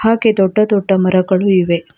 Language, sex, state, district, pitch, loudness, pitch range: Kannada, female, Karnataka, Bangalore, 190 Hz, -13 LUFS, 185-210 Hz